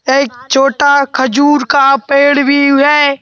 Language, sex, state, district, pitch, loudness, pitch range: Hindi, male, Madhya Pradesh, Bhopal, 280 Hz, -10 LUFS, 270-285 Hz